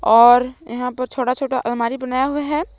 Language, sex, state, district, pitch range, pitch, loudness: Hindi, female, Jharkhand, Palamu, 240-265 Hz, 255 Hz, -18 LUFS